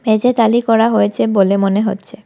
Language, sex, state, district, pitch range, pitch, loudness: Bengali, female, Assam, Kamrup Metropolitan, 205-230 Hz, 220 Hz, -14 LUFS